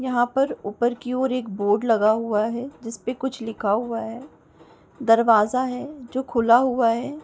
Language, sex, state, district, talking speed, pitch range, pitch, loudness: Hindi, female, Uttar Pradesh, Muzaffarnagar, 175 wpm, 225-255 Hz, 240 Hz, -22 LUFS